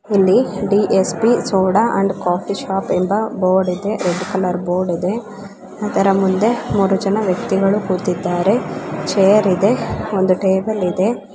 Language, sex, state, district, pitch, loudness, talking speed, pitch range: Kannada, female, Karnataka, Gulbarga, 195 Hz, -17 LUFS, 130 wpm, 185-205 Hz